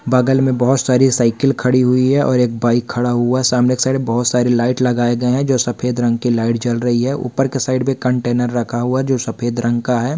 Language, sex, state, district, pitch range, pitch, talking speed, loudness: Hindi, male, Bihar, Saran, 120-130 Hz, 125 Hz, 260 wpm, -16 LUFS